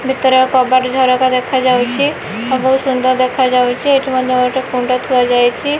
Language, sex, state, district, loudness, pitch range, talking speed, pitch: Odia, female, Odisha, Malkangiri, -13 LUFS, 250-265 Hz, 155 wpm, 255 Hz